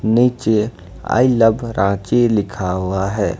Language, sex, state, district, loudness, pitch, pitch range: Hindi, male, Jharkhand, Ranchi, -17 LUFS, 105 Hz, 95-115 Hz